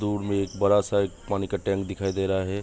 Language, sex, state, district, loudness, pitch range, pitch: Hindi, male, Uttar Pradesh, Budaun, -26 LUFS, 95-100 Hz, 100 Hz